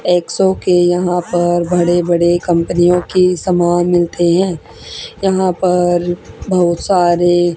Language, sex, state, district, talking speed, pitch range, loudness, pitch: Hindi, female, Haryana, Charkhi Dadri, 120 wpm, 175-180 Hz, -14 LUFS, 175 Hz